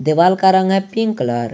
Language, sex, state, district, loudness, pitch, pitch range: Hindi, male, Jharkhand, Garhwa, -15 LUFS, 190 Hz, 155-195 Hz